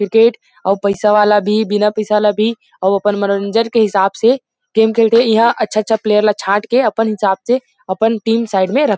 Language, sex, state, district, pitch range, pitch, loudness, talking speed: Chhattisgarhi, male, Chhattisgarh, Rajnandgaon, 205-225 Hz, 215 Hz, -14 LUFS, 220 wpm